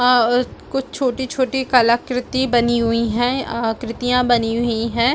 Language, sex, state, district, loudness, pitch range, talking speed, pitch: Hindi, female, Chhattisgarh, Sarguja, -18 LUFS, 235-255 Hz, 150 wpm, 245 Hz